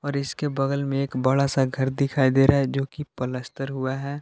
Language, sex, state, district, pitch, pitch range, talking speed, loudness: Hindi, male, Jharkhand, Palamu, 135 Hz, 130-140 Hz, 225 wpm, -24 LUFS